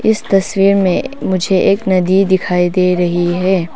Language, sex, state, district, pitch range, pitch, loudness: Hindi, female, Arunachal Pradesh, Papum Pare, 180-195 Hz, 185 Hz, -13 LUFS